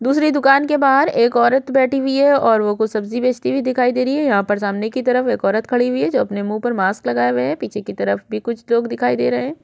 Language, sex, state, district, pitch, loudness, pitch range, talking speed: Hindi, female, Chhattisgarh, Sukma, 240 Hz, -17 LUFS, 205-265 Hz, 295 wpm